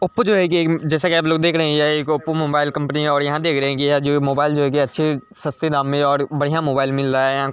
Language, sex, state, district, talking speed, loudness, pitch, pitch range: Hindi, male, Bihar, Gaya, 310 wpm, -18 LUFS, 150 Hz, 140-160 Hz